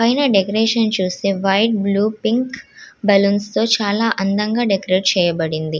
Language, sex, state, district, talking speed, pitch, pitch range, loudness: Telugu, female, Andhra Pradesh, Guntur, 115 wpm, 205 Hz, 195-225 Hz, -17 LUFS